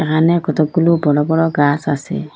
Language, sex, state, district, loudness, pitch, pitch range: Bengali, female, Assam, Hailakandi, -15 LUFS, 155 Hz, 150-165 Hz